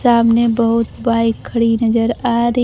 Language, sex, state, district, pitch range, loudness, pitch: Hindi, female, Bihar, Kaimur, 230-235 Hz, -15 LUFS, 230 Hz